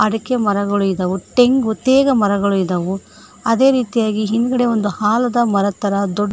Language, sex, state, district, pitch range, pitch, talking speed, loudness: Kannada, female, Karnataka, Koppal, 200-245 Hz, 215 Hz, 150 wpm, -16 LUFS